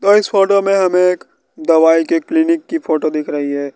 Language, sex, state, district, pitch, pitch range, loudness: Hindi, male, Bihar, West Champaran, 180 Hz, 155-200 Hz, -14 LUFS